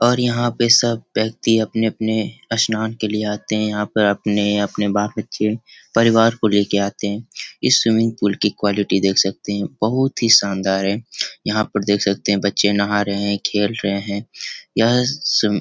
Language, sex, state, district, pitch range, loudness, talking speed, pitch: Hindi, male, Bihar, Jamui, 100-115 Hz, -18 LUFS, 185 wpm, 105 Hz